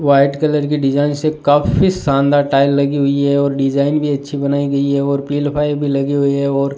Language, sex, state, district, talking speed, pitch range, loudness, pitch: Hindi, male, Rajasthan, Bikaner, 230 wpm, 140-145 Hz, -15 LUFS, 140 Hz